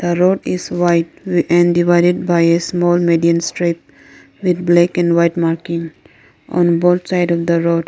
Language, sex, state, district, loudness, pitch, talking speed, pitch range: English, female, Arunachal Pradesh, Lower Dibang Valley, -15 LUFS, 175 Hz, 165 wpm, 170-175 Hz